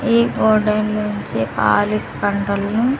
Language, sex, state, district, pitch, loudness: Telugu, female, Andhra Pradesh, Sri Satya Sai, 200 Hz, -18 LUFS